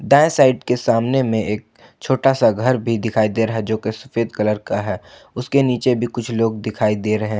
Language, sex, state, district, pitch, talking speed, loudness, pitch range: Hindi, male, Jharkhand, Ranchi, 115 Hz, 235 wpm, -18 LUFS, 110-130 Hz